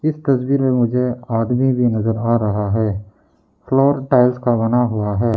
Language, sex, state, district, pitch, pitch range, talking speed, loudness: Hindi, male, Arunachal Pradesh, Lower Dibang Valley, 120 Hz, 110-130 Hz, 155 wpm, -17 LUFS